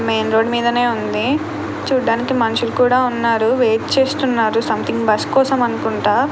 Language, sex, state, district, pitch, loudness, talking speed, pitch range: Telugu, female, Andhra Pradesh, Krishna, 235 Hz, -17 LUFS, 135 wpm, 225-260 Hz